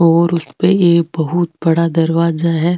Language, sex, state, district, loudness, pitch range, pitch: Rajasthani, female, Rajasthan, Nagaur, -14 LUFS, 165-170 Hz, 170 Hz